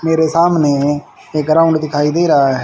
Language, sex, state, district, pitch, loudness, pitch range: Hindi, male, Haryana, Rohtak, 155 Hz, -14 LUFS, 145-165 Hz